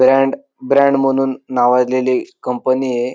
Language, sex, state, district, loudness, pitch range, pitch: Marathi, male, Maharashtra, Dhule, -16 LUFS, 125-135 Hz, 130 Hz